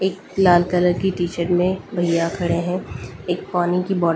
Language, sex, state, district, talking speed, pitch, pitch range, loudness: Hindi, female, Delhi, New Delhi, 200 wpm, 175 Hz, 175-185 Hz, -20 LUFS